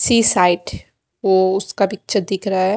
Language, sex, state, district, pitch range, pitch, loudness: Hindi, female, Haryana, Jhajjar, 190-205 Hz, 195 Hz, -17 LUFS